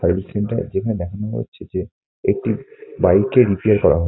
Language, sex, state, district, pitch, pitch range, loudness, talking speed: Bengali, male, West Bengal, Kolkata, 105 Hz, 95-115 Hz, -19 LUFS, 160 wpm